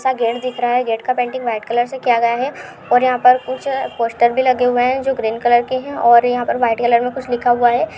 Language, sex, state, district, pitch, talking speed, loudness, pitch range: Hindi, female, Uttar Pradesh, Jyotiba Phule Nagar, 245 Hz, 295 wpm, -16 LUFS, 235-255 Hz